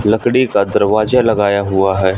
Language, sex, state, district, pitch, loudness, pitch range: Hindi, male, Haryana, Rohtak, 105 Hz, -13 LUFS, 95-115 Hz